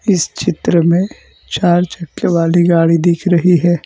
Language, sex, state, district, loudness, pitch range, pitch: Hindi, male, Gujarat, Valsad, -14 LUFS, 170-180 Hz, 175 Hz